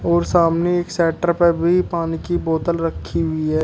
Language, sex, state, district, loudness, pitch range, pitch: Hindi, male, Uttar Pradesh, Shamli, -19 LUFS, 165-175 Hz, 170 Hz